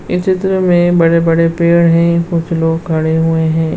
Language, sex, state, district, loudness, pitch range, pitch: Hindi, female, Chhattisgarh, Raigarh, -12 LUFS, 165-175 Hz, 170 Hz